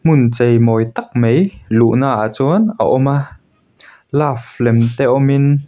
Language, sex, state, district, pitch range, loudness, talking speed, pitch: Mizo, male, Mizoram, Aizawl, 115-140 Hz, -14 LUFS, 160 wpm, 130 Hz